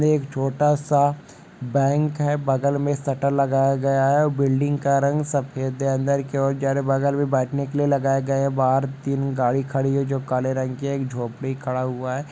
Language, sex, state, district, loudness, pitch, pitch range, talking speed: Hindi, male, Bihar, Lakhisarai, -22 LUFS, 135 Hz, 135-140 Hz, 225 wpm